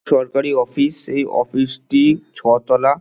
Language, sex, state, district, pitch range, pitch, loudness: Bengali, male, West Bengal, Dakshin Dinajpur, 130-145 Hz, 140 Hz, -17 LUFS